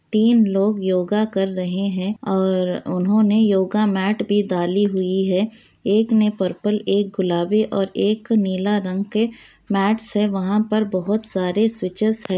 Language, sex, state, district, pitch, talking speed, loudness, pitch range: Hindi, female, Bihar, Muzaffarpur, 205 Hz, 155 wpm, -20 LUFS, 190-215 Hz